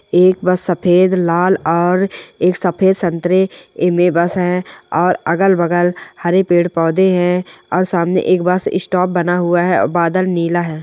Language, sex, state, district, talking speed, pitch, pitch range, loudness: Hindi, male, Maharashtra, Solapur, 155 wpm, 180 Hz, 175-185 Hz, -15 LUFS